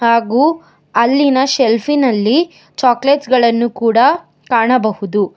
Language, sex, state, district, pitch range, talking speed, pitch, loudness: Kannada, female, Karnataka, Bangalore, 230-280 Hz, 80 wpm, 250 Hz, -13 LUFS